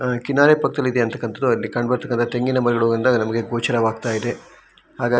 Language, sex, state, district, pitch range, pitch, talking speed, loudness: Kannada, male, Karnataka, Shimoga, 115-125 Hz, 120 Hz, 140 wpm, -20 LUFS